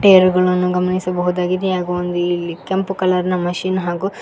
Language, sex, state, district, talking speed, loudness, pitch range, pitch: Kannada, female, Karnataka, Koppal, 140 wpm, -18 LUFS, 180-185 Hz, 180 Hz